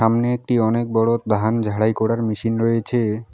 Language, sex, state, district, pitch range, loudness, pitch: Bengali, male, West Bengal, Alipurduar, 110-115 Hz, -20 LUFS, 115 Hz